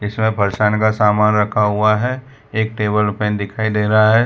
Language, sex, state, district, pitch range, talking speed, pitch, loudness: Hindi, male, Gujarat, Valsad, 105-110 Hz, 180 wpm, 105 Hz, -16 LUFS